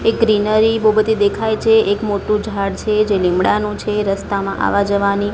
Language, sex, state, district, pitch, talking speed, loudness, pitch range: Gujarati, female, Gujarat, Gandhinagar, 210 Hz, 180 wpm, -16 LUFS, 200-215 Hz